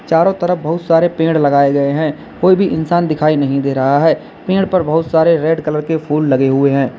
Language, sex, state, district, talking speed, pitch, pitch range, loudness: Hindi, male, Uttar Pradesh, Lalitpur, 230 wpm, 155 Hz, 140-170 Hz, -14 LUFS